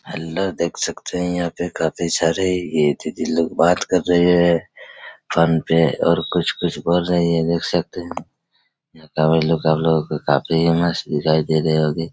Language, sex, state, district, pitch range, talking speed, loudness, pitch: Hindi, male, Chhattisgarh, Raigarh, 80-85 Hz, 175 wpm, -19 LUFS, 80 Hz